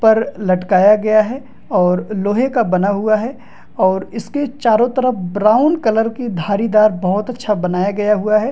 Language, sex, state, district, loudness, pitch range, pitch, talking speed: Hindi, male, Bihar, Madhepura, -15 LUFS, 200-235 Hz, 215 Hz, 170 wpm